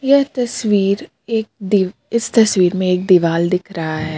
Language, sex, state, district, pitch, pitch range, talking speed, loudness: Hindi, female, Jharkhand, Palamu, 195 Hz, 180-225 Hz, 170 wpm, -16 LUFS